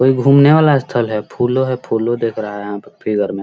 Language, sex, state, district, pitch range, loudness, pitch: Hindi, male, Bihar, Gaya, 105-130 Hz, -15 LUFS, 120 Hz